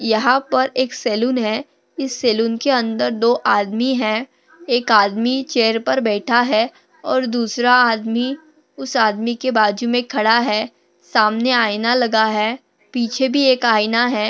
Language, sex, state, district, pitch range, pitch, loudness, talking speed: Hindi, female, Maharashtra, Nagpur, 220-255 Hz, 235 Hz, -17 LUFS, 155 wpm